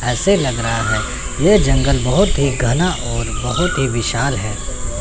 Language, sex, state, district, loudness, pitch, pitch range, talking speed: Hindi, male, Chandigarh, Chandigarh, -17 LUFS, 125 Hz, 115-140 Hz, 180 wpm